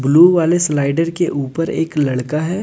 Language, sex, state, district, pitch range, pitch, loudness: Hindi, male, Jharkhand, Deoghar, 145-170 Hz, 160 Hz, -16 LUFS